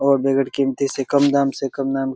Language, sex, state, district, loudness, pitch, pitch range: Maithili, male, Bihar, Begusarai, -19 LUFS, 135 Hz, 135-140 Hz